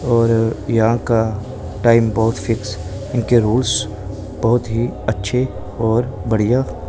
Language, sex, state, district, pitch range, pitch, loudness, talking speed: Hindi, male, Punjab, Pathankot, 105-120 Hz, 115 Hz, -18 LUFS, 115 wpm